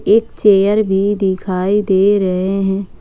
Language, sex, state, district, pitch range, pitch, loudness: Hindi, female, Jharkhand, Ranchi, 190-205 Hz, 195 Hz, -14 LUFS